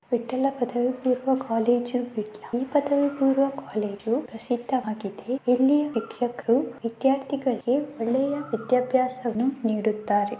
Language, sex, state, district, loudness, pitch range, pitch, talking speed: Kannada, female, Karnataka, Dakshina Kannada, -25 LUFS, 230-270 Hz, 245 Hz, 85 wpm